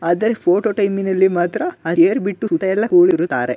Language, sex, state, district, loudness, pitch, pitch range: Kannada, male, Karnataka, Gulbarga, -16 LUFS, 195 Hz, 175-230 Hz